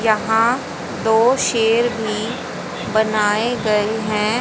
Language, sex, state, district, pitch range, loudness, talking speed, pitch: Hindi, female, Haryana, Rohtak, 215-235 Hz, -18 LUFS, 95 wpm, 220 Hz